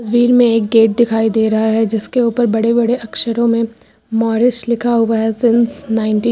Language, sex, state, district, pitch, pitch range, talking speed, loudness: Hindi, female, Uttar Pradesh, Lucknow, 230 Hz, 225-235 Hz, 200 wpm, -14 LUFS